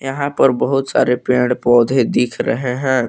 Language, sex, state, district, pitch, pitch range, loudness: Hindi, male, Jharkhand, Palamu, 130 Hz, 125-135 Hz, -16 LUFS